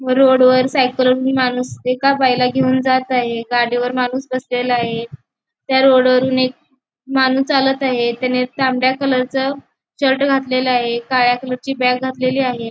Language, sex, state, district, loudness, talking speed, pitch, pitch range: Marathi, female, Goa, North and South Goa, -16 LUFS, 145 wpm, 255 Hz, 250-265 Hz